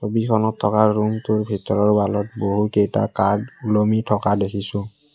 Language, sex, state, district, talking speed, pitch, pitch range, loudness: Assamese, male, Assam, Kamrup Metropolitan, 115 wpm, 105 Hz, 100-110 Hz, -20 LUFS